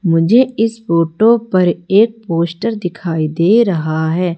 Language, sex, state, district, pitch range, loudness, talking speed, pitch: Hindi, female, Madhya Pradesh, Umaria, 165-225 Hz, -14 LUFS, 135 wpm, 180 Hz